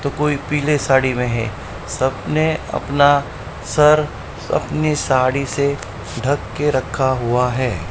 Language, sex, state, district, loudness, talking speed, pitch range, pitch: Hindi, male, Maharashtra, Mumbai Suburban, -18 LUFS, 135 wpm, 125-150 Hz, 135 Hz